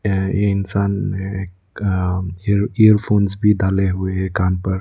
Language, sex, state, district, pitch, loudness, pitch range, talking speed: Hindi, male, Arunachal Pradesh, Lower Dibang Valley, 95 Hz, -18 LUFS, 95-100 Hz, 150 wpm